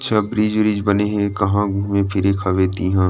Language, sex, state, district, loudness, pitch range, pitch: Chhattisgarhi, male, Chhattisgarh, Rajnandgaon, -18 LUFS, 95-105 Hz, 100 Hz